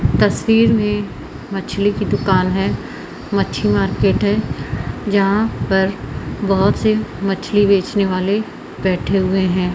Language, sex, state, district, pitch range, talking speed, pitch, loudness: Hindi, female, Madhya Pradesh, Umaria, 190-205 Hz, 115 wpm, 195 Hz, -17 LUFS